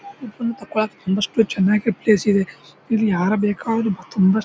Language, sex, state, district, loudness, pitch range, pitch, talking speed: Kannada, male, Karnataka, Bijapur, -20 LUFS, 195-225 Hz, 210 Hz, 110 wpm